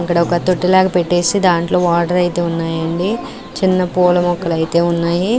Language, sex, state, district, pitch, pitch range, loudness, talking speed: Telugu, female, Andhra Pradesh, Anantapur, 175 Hz, 170-180 Hz, -15 LUFS, 165 wpm